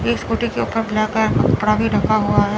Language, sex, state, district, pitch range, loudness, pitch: Hindi, female, Chandigarh, Chandigarh, 215-220 Hz, -18 LUFS, 215 Hz